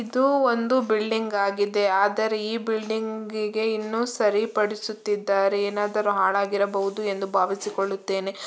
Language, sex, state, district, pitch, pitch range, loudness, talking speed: Kannada, female, Karnataka, Mysore, 210 Hz, 200-220 Hz, -24 LUFS, 90 wpm